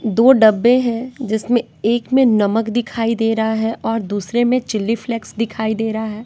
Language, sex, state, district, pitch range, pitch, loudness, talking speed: Hindi, female, Bihar, West Champaran, 220-240 Hz, 225 Hz, -17 LUFS, 190 wpm